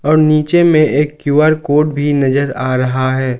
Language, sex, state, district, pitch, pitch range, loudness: Hindi, male, Jharkhand, Garhwa, 145 Hz, 130-155 Hz, -13 LUFS